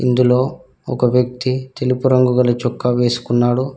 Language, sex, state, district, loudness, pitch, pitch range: Telugu, male, Telangana, Mahabubabad, -17 LUFS, 125 Hz, 125-130 Hz